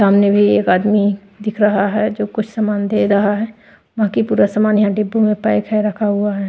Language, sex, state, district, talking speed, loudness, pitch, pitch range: Hindi, female, Punjab, Pathankot, 220 wpm, -16 LUFS, 210 Hz, 200-215 Hz